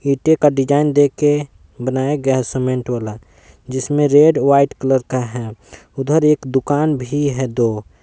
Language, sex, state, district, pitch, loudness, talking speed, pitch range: Hindi, male, Jharkhand, Palamu, 135 Hz, -16 LUFS, 165 wpm, 120-145 Hz